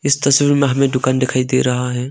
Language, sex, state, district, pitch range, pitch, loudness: Hindi, male, Arunachal Pradesh, Longding, 130-140 Hz, 130 Hz, -15 LUFS